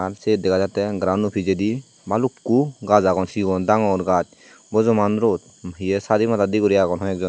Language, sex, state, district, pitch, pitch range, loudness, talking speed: Chakma, male, Tripura, Dhalai, 100 Hz, 95-110 Hz, -20 LUFS, 175 wpm